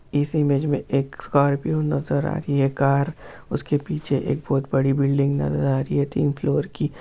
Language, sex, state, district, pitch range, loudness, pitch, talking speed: Hindi, male, Bihar, Jamui, 135-145 Hz, -22 LUFS, 140 Hz, 190 wpm